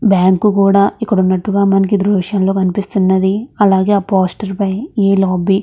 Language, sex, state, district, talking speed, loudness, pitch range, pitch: Telugu, female, Andhra Pradesh, Krishna, 160 wpm, -13 LUFS, 190-205 Hz, 195 Hz